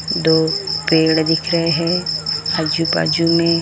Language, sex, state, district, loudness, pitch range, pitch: Hindi, male, Maharashtra, Gondia, -16 LUFS, 160-170 Hz, 165 Hz